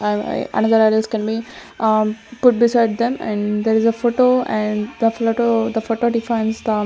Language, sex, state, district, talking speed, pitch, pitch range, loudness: English, female, Chandigarh, Chandigarh, 190 wpm, 225 Hz, 220-235 Hz, -18 LUFS